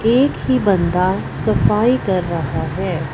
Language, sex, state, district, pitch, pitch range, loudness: Hindi, female, Punjab, Fazilka, 185 Hz, 170-225 Hz, -17 LUFS